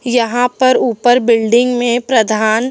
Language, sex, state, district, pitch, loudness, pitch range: Hindi, female, Delhi, New Delhi, 240 Hz, -13 LUFS, 230-245 Hz